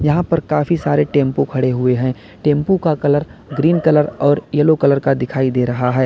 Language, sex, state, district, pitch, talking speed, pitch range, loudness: Hindi, male, Uttar Pradesh, Lalitpur, 145 Hz, 210 wpm, 130-155 Hz, -16 LUFS